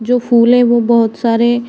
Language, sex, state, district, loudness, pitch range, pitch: Hindi, female, Uttar Pradesh, Varanasi, -11 LUFS, 230-240 Hz, 235 Hz